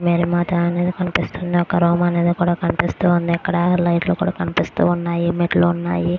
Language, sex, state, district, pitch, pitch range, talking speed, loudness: Telugu, female, Andhra Pradesh, Guntur, 175 Hz, 170-175 Hz, 155 wpm, -18 LUFS